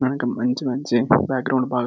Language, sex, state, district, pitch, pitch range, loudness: Telugu, male, Andhra Pradesh, Srikakulam, 130 Hz, 125-130 Hz, -21 LUFS